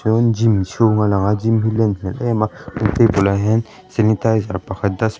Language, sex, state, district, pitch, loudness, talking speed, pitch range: Mizo, male, Mizoram, Aizawl, 110 Hz, -17 LUFS, 205 wpm, 100-115 Hz